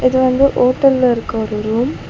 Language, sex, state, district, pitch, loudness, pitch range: Tamil, female, Tamil Nadu, Chennai, 255 Hz, -15 LUFS, 230-260 Hz